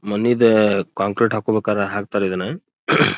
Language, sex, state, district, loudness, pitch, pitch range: Kannada, male, Karnataka, Dharwad, -19 LUFS, 105 Hz, 100-110 Hz